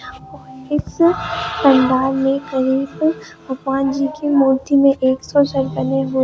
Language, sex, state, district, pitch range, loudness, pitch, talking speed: Hindi, male, Bihar, Katihar, 260-280 Hz, -17 LUFS, 270 Hz, 95 wpm